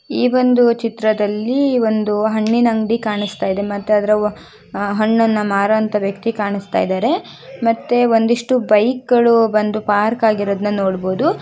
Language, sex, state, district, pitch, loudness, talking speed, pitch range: Kannada, female, Karnataka, Shimoga, 215 Hz, -16 LUFS, 115 wpm, 205-230 Hz